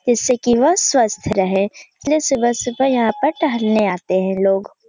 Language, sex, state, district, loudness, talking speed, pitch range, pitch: Hindi, female, Uttar Pradesh, Varanasi, -17 LUFS, 170 wpm, 200-270 Hz, 240 Hz